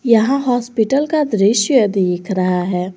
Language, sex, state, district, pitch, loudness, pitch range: Hindi, female, Jharkhand, Garhwa, 220 Hz, -16 LUFS, 185-260 Hz